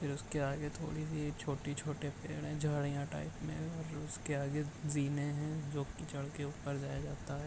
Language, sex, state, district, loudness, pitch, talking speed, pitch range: Hindi, male, Bihar, Bhagalpur, -40 LUFS, 145 Hz, 185 wpm, 140-150 Hz